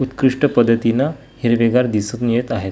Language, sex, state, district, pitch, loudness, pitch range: Marathi, male, Maharashtra, Gondia, 120 Hz, -17 LUFS, 115-130 Hz